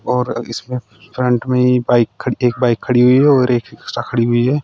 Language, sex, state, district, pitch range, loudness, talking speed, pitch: Hindi, male, Uttar Pradesh, Shamli, 120-125 Hz, -15 LUFS, 230 wpm, 125 Hz